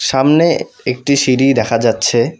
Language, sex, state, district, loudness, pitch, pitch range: Bengali, male, West Bengal, Alipurduar, -13 LUFS, 135 Hz, 130-145 Hz